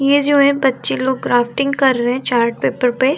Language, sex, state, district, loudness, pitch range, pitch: Hindi, female, Bihar, Vaishali, -16 LUFS, 245-275 Hz, 265 Hz